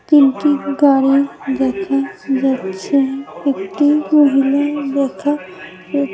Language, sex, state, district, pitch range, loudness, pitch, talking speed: Bengali, female, West Bengal, Jalpaiguri, 265-290 Hz, -16 LUFS, 275 Hz, 80 wpm